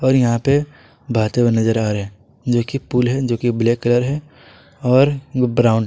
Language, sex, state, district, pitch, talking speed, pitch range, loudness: Hindi, male, Jharkhand, Ranchi, 120 Hz, 205 wpm, 115-135 Hz, -18 LUFS